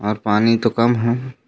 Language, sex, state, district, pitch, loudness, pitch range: Chhattisgarhi, male, Chhattisgarh, Raigarh, 115 Hz, -17 LUFS, 110-120 Hz